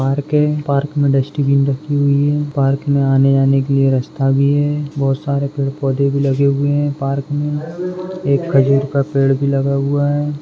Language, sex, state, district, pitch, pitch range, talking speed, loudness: Hindi, male, Maharashtra, Pune, 140 Hz, 135-145 Hz, 200 wpm, -16 LUFS